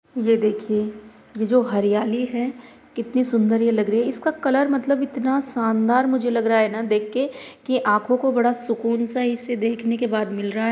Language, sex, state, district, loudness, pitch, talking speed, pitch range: Hindi, female, Uttar Pradesh, Jalaun, -21 LUFS, 235 Hz, 200 wpm, 220-255 Hz